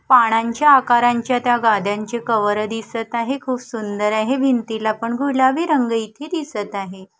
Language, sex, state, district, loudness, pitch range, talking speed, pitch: Marathi, female, Maharashtra, Mumbai Suburban, -19 LUFS, 220-255 Hz, 140 wpm, 235 Hz